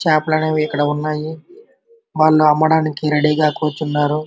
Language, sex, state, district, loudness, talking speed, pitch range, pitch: Telugu, male, Andhra Pradesh, Srikakulam, -16 LUFS, 115 wpm, 150-160 Hz, 155 Hz